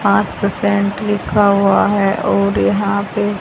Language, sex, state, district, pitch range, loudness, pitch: Hindi, female, Haryana, Jhajjar, 195-205 Hz, -15 LUFS, 200 Hz